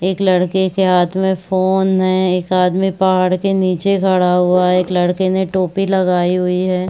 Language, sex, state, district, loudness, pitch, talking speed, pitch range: Hindi, female, Chhattisgarh, Bastar, -15 LUFS, 185 Hz, 190 wpm, 180-190 Hz